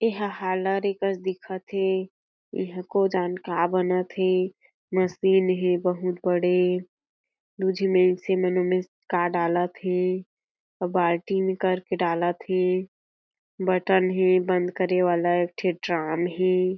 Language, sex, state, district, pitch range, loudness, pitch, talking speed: Chhattisgarhi, female, Chhattisgarh, Jashpur, 180-190 Hz, -25 LUFS, 185 Hz, 130 wpm